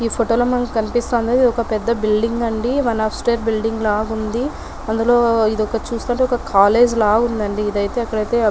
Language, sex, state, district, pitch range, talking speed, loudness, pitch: Telugu, female, Telangana, Nalgonda, 215-240 Hz, 125 wpm, -18 LUFS, 230 Hz